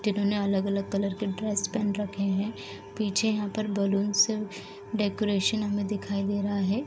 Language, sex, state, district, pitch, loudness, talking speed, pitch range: Hindi, female, Uttar Pradesh, Deoria, 200 Hz, -28 LUFS, 155 wpm, 195-210 Hz